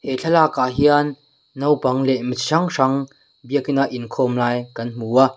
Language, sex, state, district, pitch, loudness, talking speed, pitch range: Mizo, male, Mizoram, Aizawl, 135 Hz, -19 LUFS, 165 wpm, 125-145 Hz